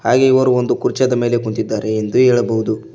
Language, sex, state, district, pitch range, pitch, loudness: Kannada, male, Karnataka, Koppal, 110-125 Hz, 120 Hz, -15 LUFS